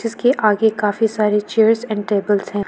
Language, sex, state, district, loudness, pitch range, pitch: Hindi, female, Arunachal Pradesh, Lower Dibang Valley, -17 LUFS, 205-225 Hz, 210 Hz